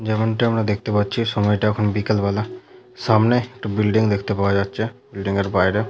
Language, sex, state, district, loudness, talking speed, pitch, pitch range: Bengali, male, West Bengal, Malda, -20 LUFS, 175 wpm, 105 Hz, 105-115 Hz